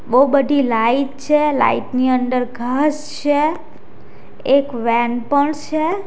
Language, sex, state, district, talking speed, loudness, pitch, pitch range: Gujarati, female, Gujarat, Valsad, 130 wpm, -17 LUFS, 275 Hz, 250-300 Hz